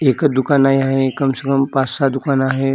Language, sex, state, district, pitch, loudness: Marathi, male, Maharashtra, Gondia, 135 Hz, -16 LUFS